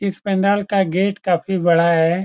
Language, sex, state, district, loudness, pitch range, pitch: Hindi, male, Bihar, Saran, -18 LUFS, 170-195 Hz, 190 Hz